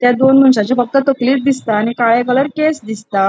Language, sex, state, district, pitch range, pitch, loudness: Konkani, female, Goa, North and South Goa, 230-270 Hz, 250 Hz, -13 LUFS